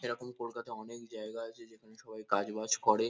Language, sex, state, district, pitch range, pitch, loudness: Bengali, male, West Bengal, Kolkata, 110-115 Hz, 110 Hz, -37 LUFS